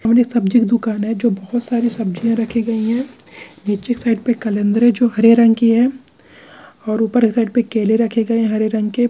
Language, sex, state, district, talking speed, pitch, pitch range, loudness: Hindi, male, Chhattisgarh, Bilaspur, 235 wpm, 230 Hz, 220-240 Hz, -16 LUFS